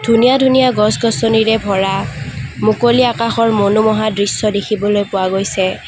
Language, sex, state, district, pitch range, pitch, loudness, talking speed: Assamese, female, Assam, Kamrup Metropolitan, 195-230 Hz, 215 Hz, -14 LUFS, 110 wpm